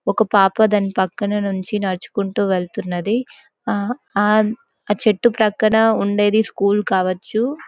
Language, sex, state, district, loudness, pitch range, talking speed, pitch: Telugu, female, Telangana, Karimnagar, -18 LUFS, 195-220 Hz, 95 wpm, 210 Hz